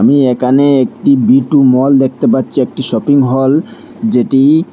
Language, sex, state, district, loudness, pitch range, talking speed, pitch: Bengali, male, Assam, Hailakandi, -11 LUFS, 130-195 Hz, 140 wpm, 140 Hz